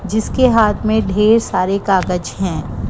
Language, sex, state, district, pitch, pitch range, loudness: Hindi, female, Gujarat, Gandhinagar, 200 Hz, 185-220 Hz, -15 LUFS